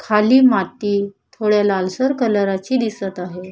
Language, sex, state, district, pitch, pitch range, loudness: Marathi, female, Maharashtra, Chandrapur, 210 Hz, 195-250 Hz, -17 LUFS